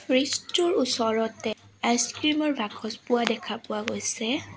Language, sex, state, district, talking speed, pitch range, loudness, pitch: Assamese, female, Assam, Sonitpur, 130 wpm, 225-280 Hz, -26 LUFS, 235 Hz